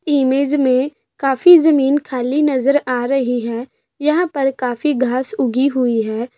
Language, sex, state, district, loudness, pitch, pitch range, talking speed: Hindi, female, Bihar, Sitamarhi, -16 LUFS, 270 Hz, 250-290 Hz, 150 wpm